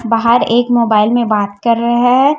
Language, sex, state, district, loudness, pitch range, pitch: Hindi, female, Chhattisgarh, Raipur, -12 LUFS, 225-240 Hz, 235 Hz